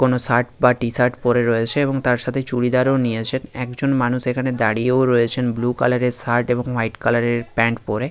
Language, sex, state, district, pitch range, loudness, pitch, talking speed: Bengali, male, West Bengal, Jhargram, 120-125 Hz, -19 LUFS, 125 Hz, 185 wpm